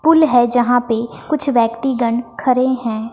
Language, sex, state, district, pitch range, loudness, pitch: Hindi, female, Bihar, West Champaran, 235-260 Hz, -16 LUFS, 245 Hz